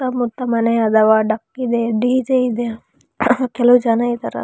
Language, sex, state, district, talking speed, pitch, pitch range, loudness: Kannada, female, Karnataka, Raichur, 135 wpm, 240 Hz, 230-250 Hz, -17 LUFS